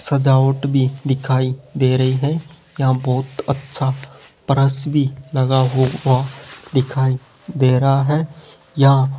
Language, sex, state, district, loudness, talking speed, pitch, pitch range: Hindi, male, Rajasthan, Jaipur, -18 LUFS, 125 wpm, 135 Hz, 130-140 Hz